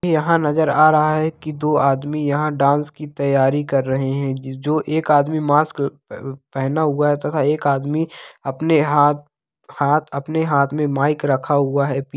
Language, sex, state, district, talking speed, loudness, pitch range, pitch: Hindi, male, Andhra Pradesh, Krishna, 190 wpm, -18 LUFS, 140-155 Hz, 145 Hz